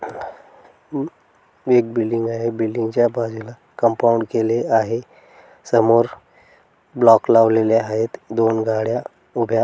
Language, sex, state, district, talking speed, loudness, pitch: Marathi, male, Maharashtra, Dhule, 105 wpm, -18 LUFS, 115 Hz